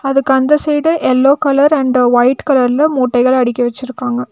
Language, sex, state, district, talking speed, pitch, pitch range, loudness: Tamil, female, Tamil Nadu, Nilgiris, 150 wpm, 260 Hz, 250-285 Hz, -12 LUFS